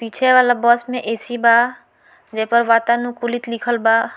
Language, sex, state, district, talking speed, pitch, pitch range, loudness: Bhojpuri, female, Bihar, Muzaffarpur, 160 wpm, 240 Hz, 230-245 Hz, -17 LUFS